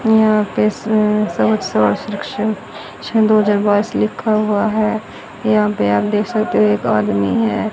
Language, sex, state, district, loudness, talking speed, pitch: Hindi, female, Haryana, Rohtak, -16 LUFS, 145 wpm, 210 Hz